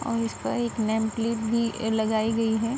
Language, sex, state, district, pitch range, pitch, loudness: Hindi, female, Bihar, Araria, 220-230 Hz, 225 Hz, -26 LUFS